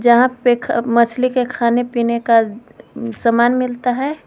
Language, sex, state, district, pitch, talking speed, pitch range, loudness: Hindi, female, Jharkhand, Garhwa, 240 Hz, 155 wpm, 235-250 Hz, -16 LUFS